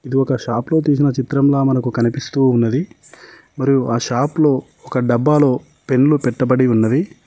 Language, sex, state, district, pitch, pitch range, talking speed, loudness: Telugu, male, Telangana, Mahabubabad, 130 Hz, 125-140 Hz, 140 wpm, -16 LUFS